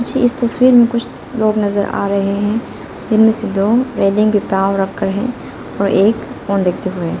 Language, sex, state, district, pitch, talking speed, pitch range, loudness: Hindi, female, Arunachal Pradesh, Lower Dibang Valley, 210 Hz, 200 wpm, 200-235 Hz, -15 LUFS